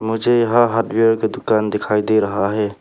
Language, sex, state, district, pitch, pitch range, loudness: Hindi, male, Arunachal Pradesh, Papum Pare, 110 Hz, 105-115 Hz, -17 LUFS